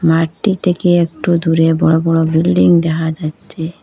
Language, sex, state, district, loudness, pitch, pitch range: Bengali, female, Assam, Hailakandi, -14 LUFS, 165 Hz, 160-170 Hz